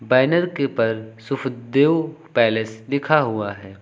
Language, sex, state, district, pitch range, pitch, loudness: Hindi, male, Uttar Pradesh, Lucknow, 110-145 Hz, 125 Hz, -21 LUFS